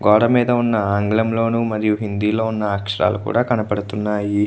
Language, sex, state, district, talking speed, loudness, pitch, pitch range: Telugu, male, Andhra Pradesh, Krishna, 150 wpm, -19 LUFS, 105 Hz, 105-115 Hz